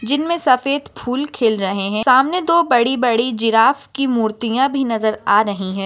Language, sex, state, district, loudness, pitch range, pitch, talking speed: Hindi, female, Maharashtra, Nagpur, -17 LUFS, 220-275 Hz, 245 Hz, 185 wpm